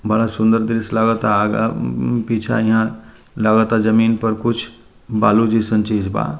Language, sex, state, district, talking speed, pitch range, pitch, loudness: Bhojpuri, male, Bihar, Muzaffarpur, 150 wpm, 110-115 Hz, 110 Hz, -17 LUFS